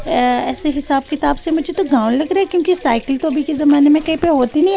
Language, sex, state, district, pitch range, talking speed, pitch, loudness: Hindi, female, Bihar, West Champaran, 285-330 Hz, 290 wpm, 300 Hz, -16 LUFS